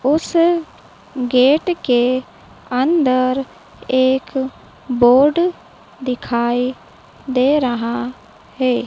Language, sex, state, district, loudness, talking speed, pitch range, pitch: Hindi, female, Madhya Pradesh, Dhar, -17 LUFS, 70 wpm, 250-285 Hz, 255 Hz